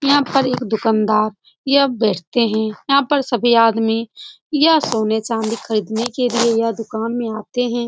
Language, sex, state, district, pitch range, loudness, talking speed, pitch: Hindi, female, Uttar Pradesh, Etah, 220-255 Hz, -17 LUFS, 165 wpm, 230 Hz